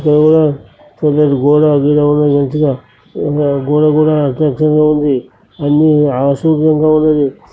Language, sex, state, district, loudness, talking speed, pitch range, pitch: Telugu, male, Andhra Pradesh, Srikakulam, -12 LUFS, 95 wpm, 145-155 Hz, 150 Hz